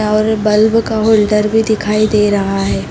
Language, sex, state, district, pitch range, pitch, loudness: Hindi, female, Bihar, Sitamarhi, 210-220 Hz, 215 Hz, -13 LUFS